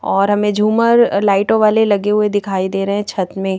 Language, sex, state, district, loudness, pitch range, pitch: Hindi, female, Madhya Pradesh, Bhopal, -15 LUFS, 195-215 Hz, 205 Hz